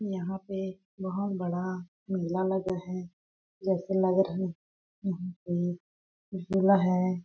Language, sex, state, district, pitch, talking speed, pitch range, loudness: Hindi, female, Chhattisgarh, Balrampur, 185 Hz, 125 wpm, 180-190 Hz, -30 LUFS